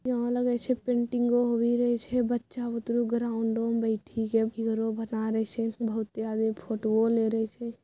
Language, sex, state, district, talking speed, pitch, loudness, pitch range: Maithili, female, Bihar, Bhagalpur, 145 wpm, 230 Hz, -28 LUFS, 225-240 Hz